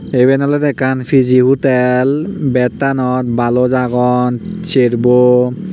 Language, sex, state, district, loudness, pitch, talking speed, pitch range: Chakma, male, Tripura, Unakoti, -13 LUFS, 125 Hz, 105 wpm, 125-135 Hz